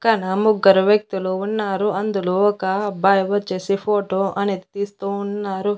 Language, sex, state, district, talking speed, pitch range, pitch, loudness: Telugu, female, Andhra Pradesh, Annamaya, 125 wpm, 190-205 Hz, 200 Hz, -20 LUFS